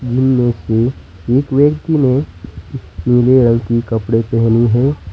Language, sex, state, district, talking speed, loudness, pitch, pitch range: Hindi, male, West Bengal, Alipurduar, 130 wpm, -14 LUFS, 120 Hz, 115-130 Hz